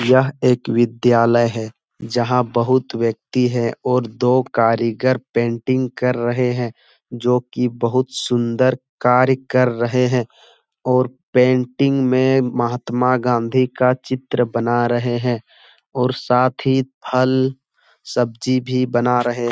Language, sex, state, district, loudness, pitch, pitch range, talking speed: Hindi, male, Bihar, Supaul, -18 LUFS, 125 Hz, 120-130 Hz, 130 wpm